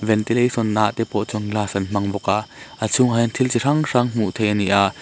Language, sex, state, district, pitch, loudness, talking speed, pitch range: Mizo, male, Mizoram, Aizawl, 110 Hz, -20 LUFS, 250 wpm, 105-120 Hz